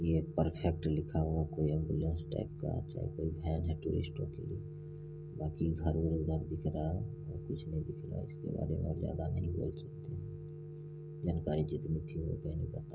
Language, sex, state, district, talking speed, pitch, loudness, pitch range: Hindi, male, Bihar, Saran, 180 wpm, 80 Hz, -38 LUFS, 80-85 Hz